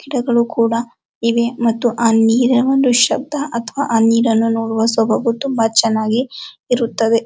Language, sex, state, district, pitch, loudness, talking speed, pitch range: Kannada, male, Karnataka, Dharwad, 235 Hz, -16 LUFS, 130 wpm, 225-250 Hz